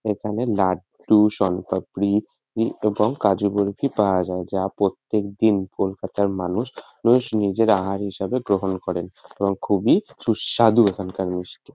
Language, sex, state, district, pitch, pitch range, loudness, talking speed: Bengali, male, West Bengal, North 24 Parganas, 100 Hz, 95-110 Hz, -22 LUFS, 145 wpm